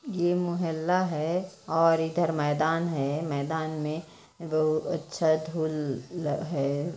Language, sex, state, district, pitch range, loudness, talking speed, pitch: Hindi, female, Chhattisgarh, Jashpur, 155-170 Hz, -28 LUFS, 110 wpm, 160 Hz